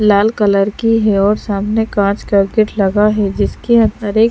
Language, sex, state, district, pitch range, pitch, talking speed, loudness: Hindi, female, Bihar, Patna, 200-220 Hz, 210 Hz, 195 wpm, -14 LUFS